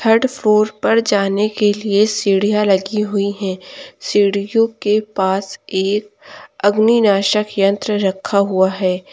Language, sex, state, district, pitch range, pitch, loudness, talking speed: Hindi, female, Uttar Pradesh, Lucknow, 195-215 Hz, 205 Hz, -16 LUFS, 130 wpm